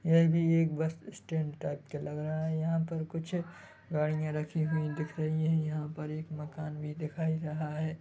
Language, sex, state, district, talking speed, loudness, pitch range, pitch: Hindi, male, Chhattisgarh, Bilaspur, 200 wpm, -33 LUFS, 150-160 Hz, 155 Hz